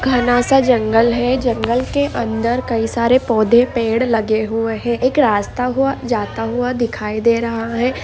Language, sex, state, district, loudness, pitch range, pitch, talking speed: Hindi, female, Andhra Pradesh, Chittoor, -16 LUFS, 225-250 Hz, 235 Hz, 170 wpm